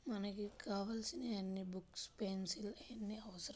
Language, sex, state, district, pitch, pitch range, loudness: Telugu, female, Andhra Pradesh, Srikakulam, 205 Hz, 190-220 Hz, -45 LUFS